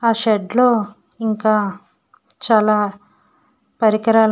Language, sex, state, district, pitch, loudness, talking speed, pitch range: Telugu, female, Andhra Pradesh, Srikakulam, 215 Hz, -17 LUFS, 85 wpm, 210-225 Hz